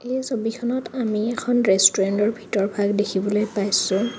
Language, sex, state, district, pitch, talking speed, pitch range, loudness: Assamese, female, Assam, Kamrup Metropolitan, 215 Hz, 130 wpm, 200-240 Hz, -21 LUFS